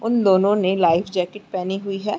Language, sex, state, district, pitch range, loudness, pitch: Hindi, female, Bihar, Araria, 185-205 Hz, -20 LUFS, 195 Hz